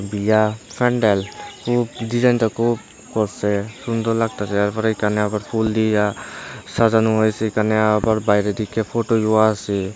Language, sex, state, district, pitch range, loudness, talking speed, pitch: Bengali, male, Tripura, Unakoti, 105-115 Hz, -19 LUFS, 145 wpm, 110 Hz